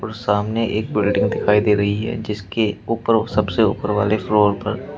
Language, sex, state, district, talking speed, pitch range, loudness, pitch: Hindi, male, Uttar Pradesh, Shamli, 180 wpm, 105-110 Hz, -19 LUFS, 105 Hz